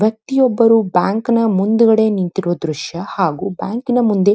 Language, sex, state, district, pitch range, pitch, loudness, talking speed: Kannada, female, Karnataka, Dharwad, 185-230 Hz, 215 Hz, -16 LUFS, 125 wpm